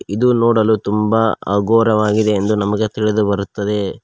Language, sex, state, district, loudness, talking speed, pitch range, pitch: Kannada, male, Karnataka, Koppal, -16 LUFS, 120 wpm, 100-110 Hz, 105 Hz